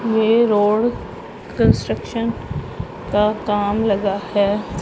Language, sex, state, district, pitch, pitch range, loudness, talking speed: Hindi, female, Punjab, Pathankot, 210 Hz, 205-225 Hz, -19 LUFS, 85 wpm